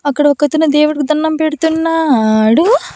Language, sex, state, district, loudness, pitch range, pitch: Telugu, female, Andhra Pradesh, Annamaya, -12 LUFS, 290-315 Hz, 305 Hz